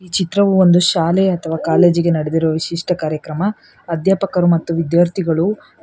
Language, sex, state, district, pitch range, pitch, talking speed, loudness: Kannada, female, Karnataka, Bangalore, 165-185 Hz, 175 Hz, 105 wpm, -16 LUFS